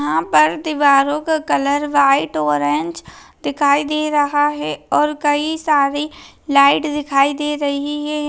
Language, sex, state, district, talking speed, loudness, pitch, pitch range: Hindi, female, Chhattisgarh, Raigarh, 135 wpm, -17 LUFS, 290 Hz, 275-295 Hz